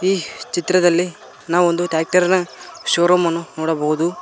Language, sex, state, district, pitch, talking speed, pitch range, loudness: Kannada, male, Karnataka, Koppal, 175 Hz, 130 wpm, 165-180 Hz, -18 LUFS